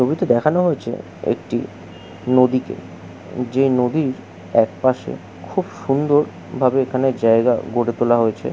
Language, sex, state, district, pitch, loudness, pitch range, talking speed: Bengali, male, West Bengal, Jhargram, 120 Hz, -19 LUFS, 100-130 Hz, 115 wpm